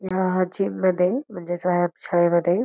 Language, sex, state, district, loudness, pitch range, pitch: Marathi, female, Karnataka, Belgaum, -22 LUFS, 175-185 Hz, 180 Hz